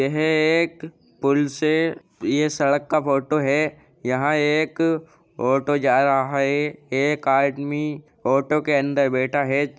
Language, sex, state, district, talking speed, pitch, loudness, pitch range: Hindi, male, Uttar Pradesh, Jyotiba Phule Nagar, 135 wpm, 145 Hz, -21 LUFS, 140-155 Hz